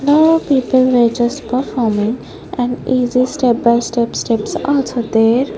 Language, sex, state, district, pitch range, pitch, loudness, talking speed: English, female, Punjab, Fazilka, 235-260 Hz, 250 Hz, -15 LUFS, 140 wpm